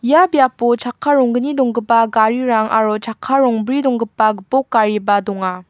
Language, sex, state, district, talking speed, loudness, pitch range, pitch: Garo, female, Meghalaya, West Garo Hills, 135 wpm, -15 LUFS, 220-260 Hz, 235 Hz